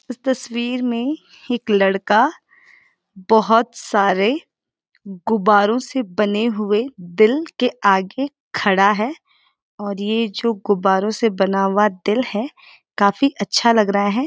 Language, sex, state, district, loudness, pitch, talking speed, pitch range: Hindi, female, Uttarakhand, Uttarkashi, -18 LUFS, 220 Hz, 125 wpm, 205-255 Hz